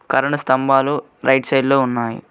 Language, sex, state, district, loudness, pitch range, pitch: Telugu, male, Telangana, Mahabubabad, -17 LUFS, 130-135 Hz, 135 Hz